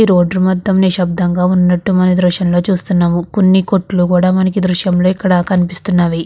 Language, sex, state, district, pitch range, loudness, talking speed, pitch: Telugu, female, Andhra Pradesh, Guntur, 180-190 Hz, -13 LUFS, 190 wpm, 185 Hz